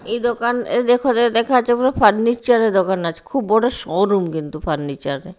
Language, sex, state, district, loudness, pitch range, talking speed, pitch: Bengali, female, Odisha, Nuapada, -18 LUFS, 175-240 Hz, 190 wpm, 225 Hz